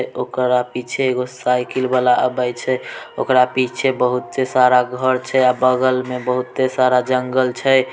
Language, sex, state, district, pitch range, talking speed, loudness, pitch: Maithili, male, Bihar, Samastipur, 125-130 Hz, 145 wpm, -17 LUFS, 125 Hz